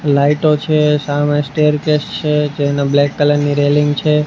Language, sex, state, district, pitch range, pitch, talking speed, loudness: Gujarati, male, Gujarat, Gandhinagar, 145-150 Hz, 145 Hz, 155 wpm, -14 LUFS